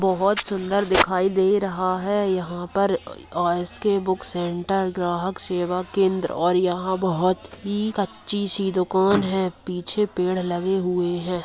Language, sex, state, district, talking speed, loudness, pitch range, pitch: Hindi, female, Bihar, Purnia, 145 wpm, -23 LUFS, 180-195 Hz, 185 Hz